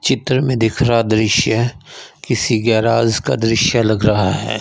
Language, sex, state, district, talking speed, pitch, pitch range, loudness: Hindi, male, Punjab, Fazilka, 155 wpm, 115 Hz, 110-125 Hz, -15 LUFS